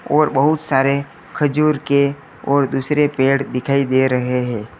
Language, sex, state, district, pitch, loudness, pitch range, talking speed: Hindi, male, Uttar Pradesh, Lalitpur, 140 Hz, -17 LUFS, 130-145 Hz, 150 wpm